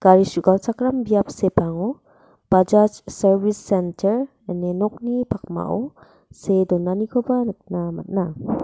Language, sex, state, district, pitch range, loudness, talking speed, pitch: Garo, female, Meghalaya, West Garo Hills, 185-230 Hz, -21 LUFS, 95 wpm, 195 Hz